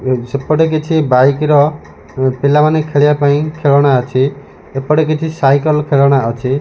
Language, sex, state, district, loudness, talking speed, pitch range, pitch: Odia, male, Odisha, Malkangiri, -12 LUFS, 125 wpm, 135-155 Hz, 145 Hz